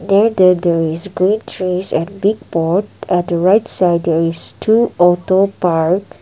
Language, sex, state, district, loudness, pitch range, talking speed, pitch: English, female, Nagaland, Dimapur, -15 LUFS, 170-195 Hz, 155 wpm, 180 Hz